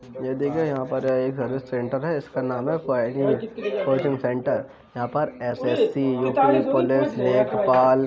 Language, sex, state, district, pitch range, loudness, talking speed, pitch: Hindi, male, Uttar Pradesh, Jalaun, 125-140 Hz, -23 LUFS, 150 wpm, 130 Hz